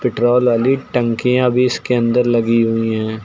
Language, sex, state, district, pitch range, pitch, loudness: Hindi, male, Uttar Pradesh, Lucknow, 115-125 Hz, 120 Hz, -16 LUFS